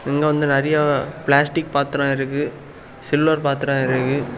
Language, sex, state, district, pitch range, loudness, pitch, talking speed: Tamil, male, Tamil Nadu, Kanyakumari, 140-150 Hz, -19 LUFS, 140 Hz, 125 wpm